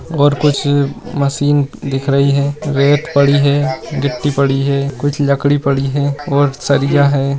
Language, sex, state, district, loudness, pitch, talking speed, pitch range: Hindi, male, Bihar, Jahanabad, -14 LUFS, 140 Hz, 155 wpm, 140-145 Hz